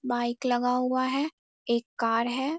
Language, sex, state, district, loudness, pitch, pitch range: Hindi, female, Bihar, Darbhanga, -28 LUFS, 250 Hz, 240-265 Hz